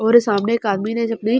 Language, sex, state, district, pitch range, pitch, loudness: Hindi, female, Delhi, New Delhi, 210-230 Hz, 225 Hz, -18 LUFS